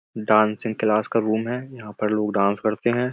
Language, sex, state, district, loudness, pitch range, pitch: Hindi, male, Uttar Pradesh, Budaun, -22 LUFS, 105-115 Hz, 110 Hz